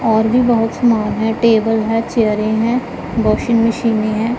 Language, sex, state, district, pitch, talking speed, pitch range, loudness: Hindi, female, Punjab, Pathankot, 225 Hz, 165 wpm, 220-235 Hz, -15 LUFS